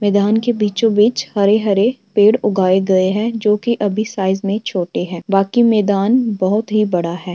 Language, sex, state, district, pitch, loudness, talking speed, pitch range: Hindi, female, Uttar Pradesh, Muzaffarnagar, 205 Hz, -16 LUFS, 180 wpm, 195-220 Hz